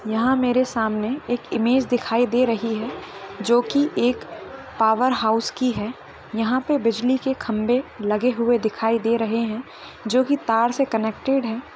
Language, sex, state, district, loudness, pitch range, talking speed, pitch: Hindi, female, Bihar, Gopalganj, -22 LUFS, 225-255 Hz, 160 wpm, 235 Hz